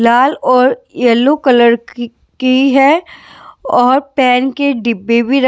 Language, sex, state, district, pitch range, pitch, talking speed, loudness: Hindi, female, Bihar, West Champaran, 240-270 Hz, 255 Hz, 155 wpm, -12 LUFS